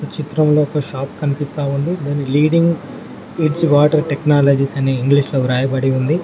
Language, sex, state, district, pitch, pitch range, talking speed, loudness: Telugu, male, Telangana, Mahabubabad, 145 Hz, 135-155 Hz, 135 wpm, -16 LUFS